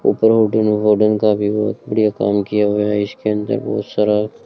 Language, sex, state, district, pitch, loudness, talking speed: Hindi, male, Rajasthan, Bikaner, 105 Hz, -17 LUFS, 215 wpm